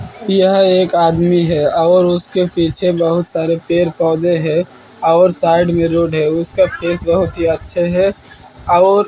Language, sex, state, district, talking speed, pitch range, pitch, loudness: Hindi, male, Bihar, Katihar, 160 wpm, 165-180 Hz, 170 Hz, -14 LUFS